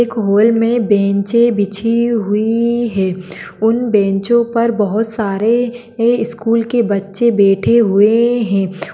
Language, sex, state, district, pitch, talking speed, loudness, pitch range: Hindi, male, Maharashtra, Dhule, 225 Hz, 120 wpm, -14 LUFS, 200-235 Hz